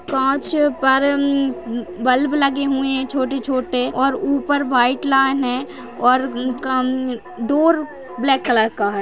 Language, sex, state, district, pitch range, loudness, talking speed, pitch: Hindi, female, Maharashtra, Sindhudurg, 255-280 Hz, -18 LUFS, 155 wpm, 265 Hz